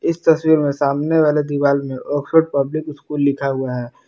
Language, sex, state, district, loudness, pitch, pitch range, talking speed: Hindi, male, Jharkhand, Palamu, -18 LUFS, 145 Hz, 140-155 Hz, 190 wpm